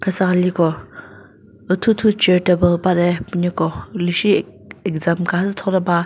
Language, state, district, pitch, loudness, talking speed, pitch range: Chakhesang, Nagaland, Dimapur, 180 Hz, -18 LUFS, 130 wpm, 170-190 Hz